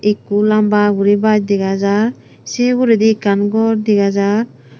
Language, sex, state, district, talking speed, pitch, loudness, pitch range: Chakma, female, Tripura, Unakoti, 150 wpm, 210 Hz, -14 LUFS, 200-220 Hz